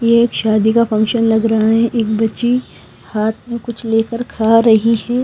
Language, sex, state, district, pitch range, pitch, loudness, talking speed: Hindi, female, Himachal Pradesh, Shimla, 220-235 Hz, 225 Hz, -15 LUFS, 195 wpm